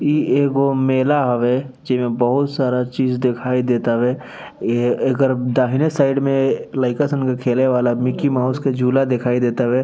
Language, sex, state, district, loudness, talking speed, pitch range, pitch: Bhojpuri, male, Bihar, East Champaran, -18 LUFS, 150 wpm, 125-135 Hz, 130 Hz